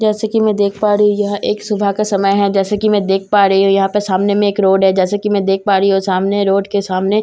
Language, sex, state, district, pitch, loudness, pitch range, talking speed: Hindi, female, Bihar, Katihar, 200 Hz, -14 LUFS, 195-205 Hz, 315 wpm